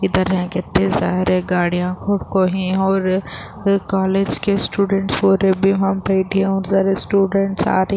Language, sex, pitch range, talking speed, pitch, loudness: Urdu, female, 185-195 Hz, 160 wpm, 195 Hz, -18 LUFS